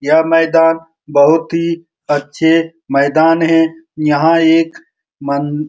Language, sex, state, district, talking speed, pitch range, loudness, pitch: Hindi, male, Bihar, Supaul, 125 wpm, 150-165 Hz, -13 LUFS, 165 Hz